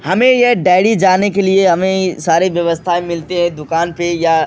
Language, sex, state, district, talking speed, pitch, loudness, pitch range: Hindi, male, Bihar, Kishanganj, 200 wpm, 180 Hz, -13 LUFS, 170-190 Hz